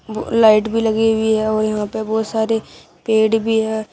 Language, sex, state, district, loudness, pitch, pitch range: Hindi, female, Uttar Pradesh, Shamli, -17 LUFS, 220 Hz, 215-225 Hz